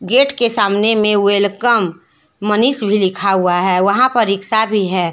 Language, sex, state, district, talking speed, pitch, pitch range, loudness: Hindi, female, Jharkhand, Deoghar, 175 wpm, 205 Hz, 190-225 Hz, -14 LUFS